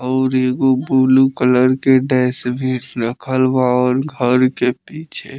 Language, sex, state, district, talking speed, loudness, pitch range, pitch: Bhojpuri, male, Bihar, Muzaffarpur, 155 wpm, -16 LUFS, 125-130 Hz, 130 Hz